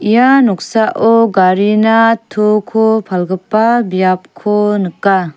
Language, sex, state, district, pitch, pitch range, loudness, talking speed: Garo, female, Meghalaya, South Garo Hills, 210 Hz, 190-225 Hz, -12 LUFS, 80 wpm